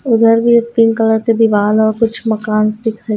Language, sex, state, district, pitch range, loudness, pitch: Hindi, female, Haryana, Rohtak, 215-230 Hz, -13 LUFS, 225 Hz